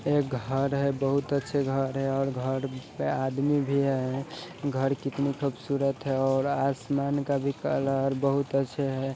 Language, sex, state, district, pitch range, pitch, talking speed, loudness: Hindi, male, Bihar, Sitamarhi, 135-140 Hz, 135 Hz, 165 wpm, -28 LUFS